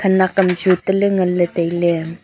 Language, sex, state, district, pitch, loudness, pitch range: Wancho, female, Arunachal Pradesh, Longding, 180 Hz, -16 LUFS, 175-190 Hz